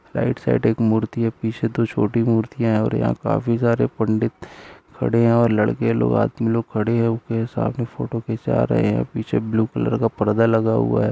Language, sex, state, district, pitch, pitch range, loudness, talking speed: Hindi, male, Bihar, Jamui, 115 Hz, 110-115 Hz, -20 LUFS, 205 wpm